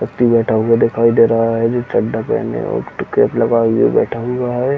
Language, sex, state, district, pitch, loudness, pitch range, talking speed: Hindi, male, Chhattisgarh, Bilaspur, 115 Hz, -15 LUFS, 115-120 Hz, 215 wpm